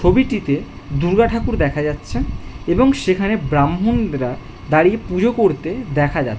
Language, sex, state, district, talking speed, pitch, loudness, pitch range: Bengali, male, West Bengal, Jhargram, 130 wpm, 155 Hz, -18 LUFS, 140-220 Hz